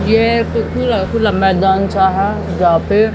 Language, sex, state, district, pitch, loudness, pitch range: Hindi, female, Haryana, Jhajjar, 200 Hz, -14 LUFS, 190-220 Hz